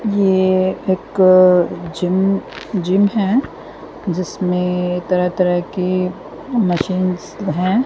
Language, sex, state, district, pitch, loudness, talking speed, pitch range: Hindi, female, Haryana, Jhajjar, 185 Hz, -17 LUFS, 75 wpm, 180-195 Hz